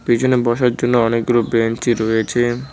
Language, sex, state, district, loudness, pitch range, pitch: Bengali, male, West Bengal, Cooch Behar, -17 LUFS, 115-120 Hz, 120 Hz